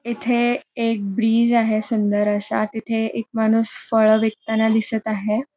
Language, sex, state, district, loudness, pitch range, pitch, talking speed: Marathi, female, Maharashtra, Pune, -20 LUFS, 215-230 Hz, 220 Hz, 140 wpm